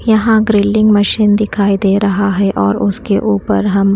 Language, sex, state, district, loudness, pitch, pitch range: Hindi, female, Haryana, Charkhi Dadri, -12 LUFS, 205 Hz, 200-215 Hz